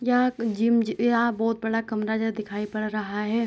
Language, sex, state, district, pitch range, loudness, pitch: Hindi, female, Uttar Pradesh, Jyotiba Phule Nagar, 215-230 Hz, -25 LUFS, 225 Hz